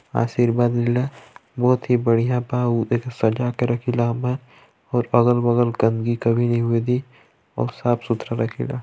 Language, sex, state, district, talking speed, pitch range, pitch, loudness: Chhattisgarhi, male, Chhattisgarh, Balrampur, 155 wpm, 115-125 Hz, 120 Hz, -21 LUFS